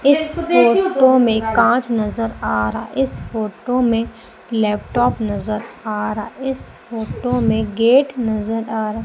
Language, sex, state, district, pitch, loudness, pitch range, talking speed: Hindi, female, Madhya Pradesh, Umaria, 225 Hz, -18 LUFS, 215-250 Hz, 160 wpm